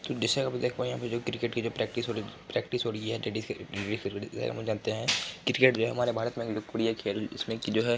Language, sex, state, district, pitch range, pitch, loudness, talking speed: Hindi, male, Bihar, Araria, 115-120 Hz, 115 Hz, -31 LUFS, 240 wpm